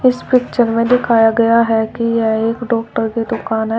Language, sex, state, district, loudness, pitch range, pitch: Hindi, female, Uttar Pradesh, Shamli, -15 LUFS, 225-240 Hz, 230 Hz